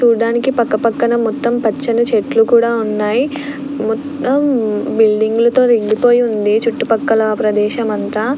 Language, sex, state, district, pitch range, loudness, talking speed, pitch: Telugu, female, Andhra Pradesh, Krishna, 220-245 Hz, -14 LUFS, 100 wpm, 230 Hz